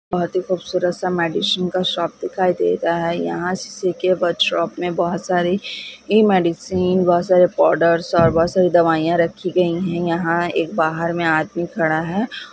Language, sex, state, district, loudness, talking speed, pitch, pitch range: Hindi, female, Bihar, Vaishali, -18 LUFS, 165 wpm, 175 Hz, 170-185 Hz